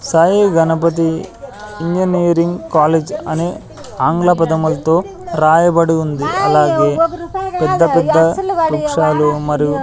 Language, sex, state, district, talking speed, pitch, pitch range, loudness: Telugu, male, Andhra Pradesh, Sri Satya Sai, 85 wpm, 165 Hz, 160-180 Hz, -14 LUFS